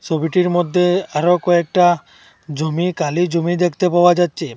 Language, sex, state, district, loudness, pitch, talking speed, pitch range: Bengali, male, Assam, Hailakandi, -16 LUFS, 175 Hz, 130 wpm, 165-180 Hz